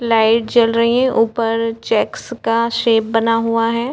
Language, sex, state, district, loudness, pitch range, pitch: Hindi, female, Chhattisgarh, Korba, -16 LUFS, 225-235 Hz, 230 Hz